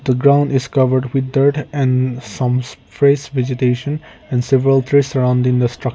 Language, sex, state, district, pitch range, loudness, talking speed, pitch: English, male, Nagaland, Kohima, 125-140 Hz, -16 LUFS, 170 wpm, 130 Hz